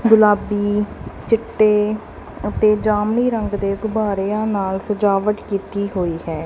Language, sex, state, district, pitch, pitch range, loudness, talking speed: Punjabi, female, Punjab, Kapurthala, 210 Hz, 200-215 Hz, -19 LUFS, 110 wpm